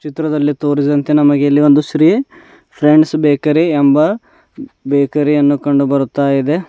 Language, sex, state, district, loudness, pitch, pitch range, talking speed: Kannada, male, Karnataka, Bidar, -13 LUFS, 150 Hz, 145-155 Hz, 110 wpm